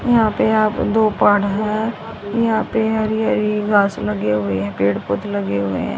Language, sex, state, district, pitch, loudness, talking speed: Hindi, female, Haryana, Rohtak, 210 Hz, -18 LUFS, 190 wpm